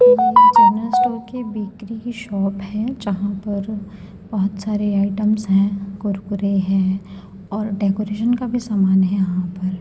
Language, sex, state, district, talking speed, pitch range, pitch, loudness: Hindi, female, Madhya Pradesh, Bhopal, 155 wpm, 195-225 Hz, 205 Hz, -19 LUFS